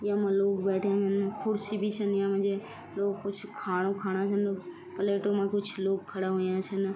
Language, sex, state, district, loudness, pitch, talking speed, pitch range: Garhwali, female, Uttarakhand, Tehri Garhwal, -30 LUFS, 200 Hz, 175 wpm, 195-205 Hz